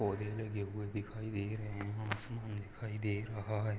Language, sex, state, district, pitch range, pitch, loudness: Hindi, male, Jharkhand, Sahebganj, 105-110 Hz, 105 Hz, -40 LUFS